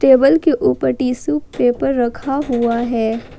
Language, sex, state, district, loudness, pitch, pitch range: Hindi, female, Jharkhand, Ranchi, -16 LUFS, 245 Hz, 235-275 Hz